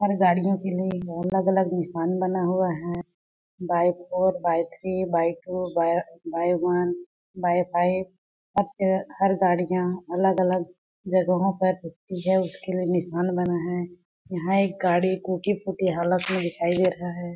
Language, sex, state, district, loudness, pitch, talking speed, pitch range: Hindi, female, Chhattisgarh, Balrampur, -25 LUFS, 180 Hz, 155 wpm, 175-185 Hz